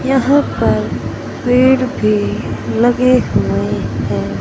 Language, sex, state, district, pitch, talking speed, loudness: Hindi, male, Madhya Pradesh, Katni, 115 Hz, 95 wpm, -15 LUFS